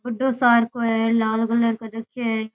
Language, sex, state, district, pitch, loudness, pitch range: Rajasthani, female, Rajasthan, Nagaur, 230 Hz, -20 LUFS, 225-240 Hz